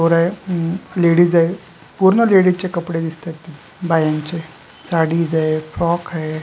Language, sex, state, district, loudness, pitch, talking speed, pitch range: Marathi, male, Maharashtra, Sindhudurg, -17 LUFS, 170 Hz, 140 wpm, 160-175 Hz